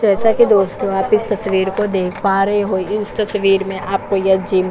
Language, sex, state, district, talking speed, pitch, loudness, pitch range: Hindi, female, Chhattisgarh, Korba, 215 wpm, 195 Hz, -16 LUFS, 190-210 Hz